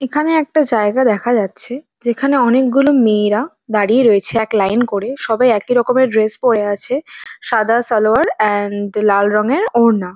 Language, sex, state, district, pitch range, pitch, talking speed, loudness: Bengali, female, West Bengal, North 24 Parganas, 210-255 Hz, 230 Hz, 155 wpm, -14 LUFS